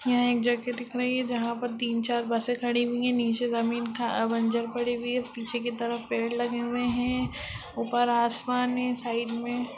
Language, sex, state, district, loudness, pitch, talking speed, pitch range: Hindi, female, Bihar, Muzaffarpur, -28 LUFS, 240 Hz, 210 wpm, 235-245 Hz